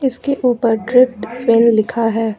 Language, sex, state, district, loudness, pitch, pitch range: Hindi, female, Jharkhand, Ranchi, -15 LUFS, 235 Hz, 225-250 Hz